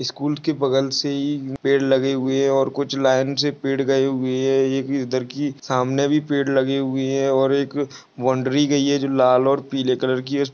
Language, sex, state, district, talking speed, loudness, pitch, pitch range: Hindi, male, Maharashtra, Pune, 210 wpm, -20 LUFS, 135 Hz, 135-140 Hz